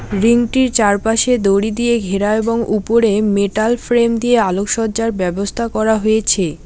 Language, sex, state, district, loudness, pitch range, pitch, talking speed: Bengali, female, West Bengal, Alipurduar, -15 LUFS, 205-235 Hz, 220 Hz, 135 wpm